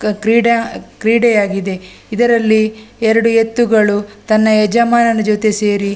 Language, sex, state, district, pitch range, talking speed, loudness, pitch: Kannada, female, Karnataka, Dakshina Kannada, 210-230 Hz, 110 wpm, -13 LUFS, 220 Hz